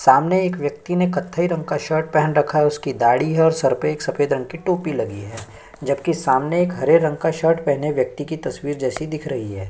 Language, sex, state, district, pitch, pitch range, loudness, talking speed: Hindi, male, Chhattisgarh, Sukma, 150 Hz, 140-165 Hz, -20 LUFS, 225 wpm